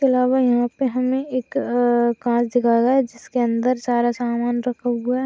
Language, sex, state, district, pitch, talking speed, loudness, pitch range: Hindi, female, Bihar, Saharsa, 245 Hz, 205 wpm, -20 LUFS, 240-255 Hz